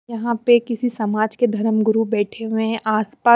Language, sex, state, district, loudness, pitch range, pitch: Hindi, female, Punjab, Pathankot, -20 LUFS, 220-235 Hz, 225 Hz